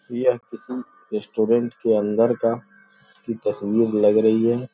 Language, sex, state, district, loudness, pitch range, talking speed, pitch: Hindi, male, Uttar Pradesh, Gorakhpur, -21 LUFS, 110-120 Hz, 140 wpm, 115 Hz